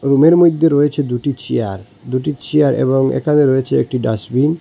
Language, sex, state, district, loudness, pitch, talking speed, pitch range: Bengali, male, Assam, Hailakandi, -15 LUFS, 135 Hz, 170 wpm, 125-150 Hz